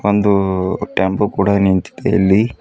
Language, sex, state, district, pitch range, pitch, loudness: Kannada, female, Karnataka, Bidar, 95-105 Hz, 95 Hz, -16 LUFS